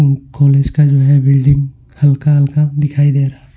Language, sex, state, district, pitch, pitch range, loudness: Hindi, male, Punjab, Pathankot, 140 Hz, 135-145 Hz, -12 LUFS